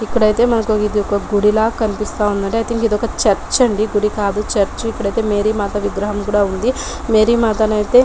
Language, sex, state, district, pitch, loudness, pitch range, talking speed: Telugu, female, Telangana, Nalgonda, 215 Hz, -16 LUFS, 205-225 Hz, 185 wpm